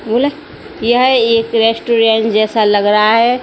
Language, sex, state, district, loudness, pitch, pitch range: Hindi, female, Uttar Pradesh, Lalitpur, -12 LUFS, 230 Hz, 220-245 Hz